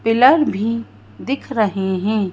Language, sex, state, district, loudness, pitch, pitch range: Hindi, female, Madhya Pradesh, Bhopal, -18 LUFS, 225 Hz, 205-260 Hz